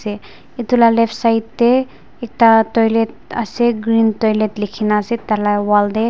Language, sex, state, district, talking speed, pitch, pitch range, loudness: Nagamese, female, Nagaland, Dimapur, 130 wpm, 225 Hz, 210-235 Hz, -15 LUFS